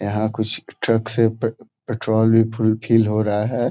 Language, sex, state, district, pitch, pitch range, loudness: Hindi, male, Bihar, Gopalganj, 110 Hz, 110-115 Hz, -20 LUFS